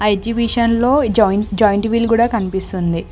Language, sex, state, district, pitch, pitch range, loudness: Telugu, female, Telangana, Mahabubabad, 220 Hz, 195-230 Hz, -16 LUFS